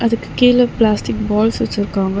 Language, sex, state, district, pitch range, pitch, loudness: Tamil, female, Tamil Nadu, Chennai, 205-230 Hz, 215 Hz, -16 LUFS